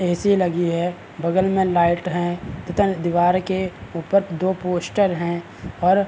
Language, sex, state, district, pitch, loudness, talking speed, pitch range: Hindi, male, Bihar, Vaishali, 180 Hz, -21 LUFS, 150 wpm, 175-190 Hz